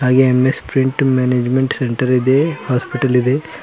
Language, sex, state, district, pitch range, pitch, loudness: Kannada, male, Karnataka, Bidar, 125-135 Hz, 130 Hz, -16 LUFS